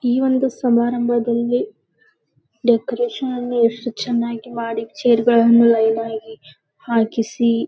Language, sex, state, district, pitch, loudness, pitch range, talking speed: Kannada, female, Karnataka, Gulbarga, 235 Hz, -18 LUFS, 230-245 Hz, 95 wpm